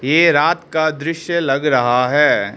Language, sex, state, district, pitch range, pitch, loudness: Hindi, male, Arunachal Pradesh, Lower Dibang Valley, 130-165 Hz, 150 Hz, -15 LUFS